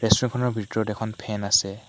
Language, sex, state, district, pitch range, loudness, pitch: Assamese, male, Assam, Hailakandi, 105-115 Hz, -24 LUFS, 110 Hz